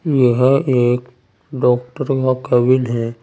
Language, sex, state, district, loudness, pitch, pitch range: Hindi, male, Uttar Pradesh, Saharanpur, -16 LUFS, 125 Hz, 120-130 Hz